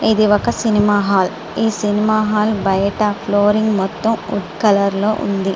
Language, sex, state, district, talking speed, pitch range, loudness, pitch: Telugu, female, Andhra Pradesh, Srikakulam, 150 wpm, 200-215 Hz, -16 LUFS, 205 Hz